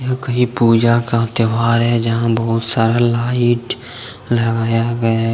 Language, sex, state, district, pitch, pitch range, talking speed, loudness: Hindi, male, Jharkhand, Deoghar, 115 Hz, 115-120 Hz, 145 wpm, -16 LUFS